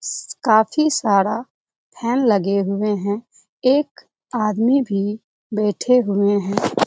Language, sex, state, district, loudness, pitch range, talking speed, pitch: Hindi, female, Bihar, Jamui, -19 LUFS, 200-250 Hz, 105 wpm, 215 Hz